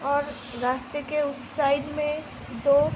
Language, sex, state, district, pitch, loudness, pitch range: Hindi, female, Uttar Pradesh, Budaun, 285 Hz, -27 LUFS, 275-295 Hz